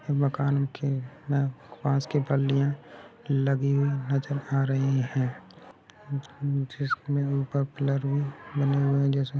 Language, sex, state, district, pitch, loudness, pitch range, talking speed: Hindi, male, Bihar, Gaya, 140 Hz, -27 LUFS, 135-140 Hz, 120 wpm